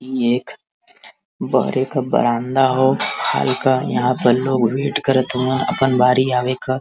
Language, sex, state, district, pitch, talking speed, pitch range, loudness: Bhojpuri, male, Uttar Pradesh, Varanasi, 130 Hz, 150 wpm, 125-130 Hz, -18 LUFS